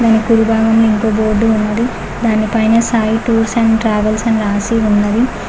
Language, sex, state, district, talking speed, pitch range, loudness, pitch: Telugu, female, Telangana, Mahabubabad, 120 wpm, 215-230 Hz, -13 LUFS, 225 Hz